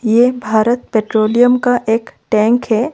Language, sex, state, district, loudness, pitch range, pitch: Hindi, female, Odisha, Malkangiri, -14 LUFS, 220-245 Hz, 235 Hz